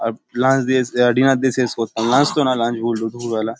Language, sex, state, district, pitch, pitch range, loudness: Bengali, male, West Bengal, Paschim Medinipur, 120 Hz, 115-130 Hz, -18 LUFS